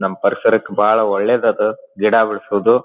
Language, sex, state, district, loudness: Kannada, male, Karnataka, Dharwad, -16 LUFS